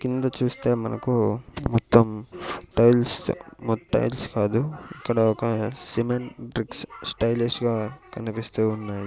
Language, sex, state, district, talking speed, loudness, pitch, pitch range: Telugu, male, Andhra Pradesh, Sri Satya Sai, 105 wpm, -25 LUFS, 115 Hz, 110-125 Hz